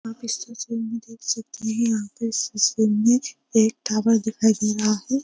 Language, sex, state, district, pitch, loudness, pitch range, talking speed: Hindi, female, Uttar Pradesh, Jyotiba Phule Nagar, 225 Hz, -23 LUFS, 220-235 Hz, 205 wpm